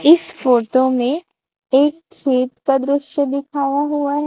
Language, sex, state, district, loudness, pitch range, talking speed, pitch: Hindi, female, Chhattisgarh, Raipur, -18 LUFS, 260-295 Hz, 140 wpm, 280 Hz